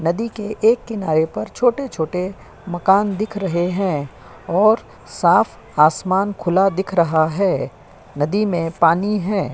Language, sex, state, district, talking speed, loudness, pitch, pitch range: Hindi, female, Uttar Pradesh, Jyotiba Phule Nagar, 130 wpm, -19 LUFS, 190 Hz, 160-205 Hz